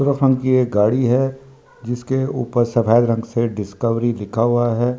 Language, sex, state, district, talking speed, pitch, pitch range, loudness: Hindi, male, Delhi, New Delhi, 180 wpm, 120 Hz, 115-130 Hz, -18 LUFS